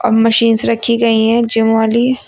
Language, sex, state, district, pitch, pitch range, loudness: Hindi, female, Uttar Pradesh, Lucknow, 230 Hz, 225-235 Hz, -12 LUFS